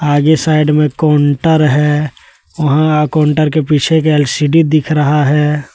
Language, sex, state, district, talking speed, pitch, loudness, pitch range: Hindi, male, Jharkhand, Deoghar, 145 wpm, 150 Hz, -11 LUFS, 150-155 Hz